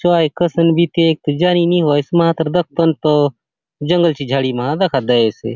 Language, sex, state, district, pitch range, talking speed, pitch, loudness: Halbi, male, Chhattisgarh, Bastar, 145-170 Hz, 195 wpm, 160 Hz, -15 LUFS